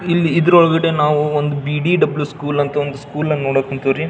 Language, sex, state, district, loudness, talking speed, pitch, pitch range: Kannada, male, Karnataka, Belgaum, -16 LUFS, 175 wpm, 150 Hz, 145-160 Hz